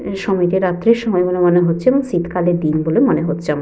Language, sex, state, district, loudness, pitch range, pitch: Bengali, female, West Bengal, Paschim Medinipur, -16 LUFS, 165-190 Hz, 175 Hz